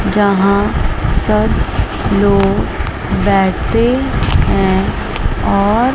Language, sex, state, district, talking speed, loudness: Hindi, female, Chandigarh, Chandigarh, 70 wpm, -14 LUFS